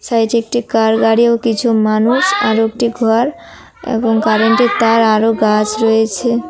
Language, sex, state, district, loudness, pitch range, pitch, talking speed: Bengali, female, West Bengal, Cooch Behar, -13 LUFS, 220-235 Hz, 225 Hz, 165 wpm